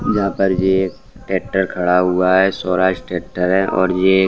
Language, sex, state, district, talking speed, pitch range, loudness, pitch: Hindi, male, Bihar, Saran, 180 wpm, 90-95 Hz, -17 LUFS, 95 Hz